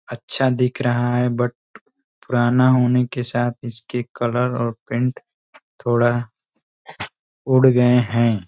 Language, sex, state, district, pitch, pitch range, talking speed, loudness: Hindi, male, Uttar Pradesh, Ghazipur, 120 Hz, 120-125 Hz, 120 wpm, -20 LUFS